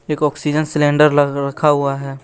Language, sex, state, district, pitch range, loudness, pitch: Hindi, female, Bihar, West Champaran, 140-150 Hz, -16 LUFS, 145 Hz